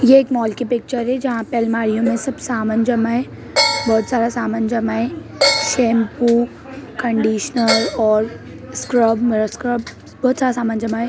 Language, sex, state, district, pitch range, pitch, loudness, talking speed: Hindi, female, Bihar, Gaya, 225-250 Hz, 235 Hz, -18 LUFS, 185 wpm